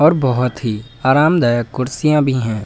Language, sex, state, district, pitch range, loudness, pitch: Hindi, male, Uttar Pradesh, Lucknow, 120-150 Hz, -16 LUFS, 130 Hz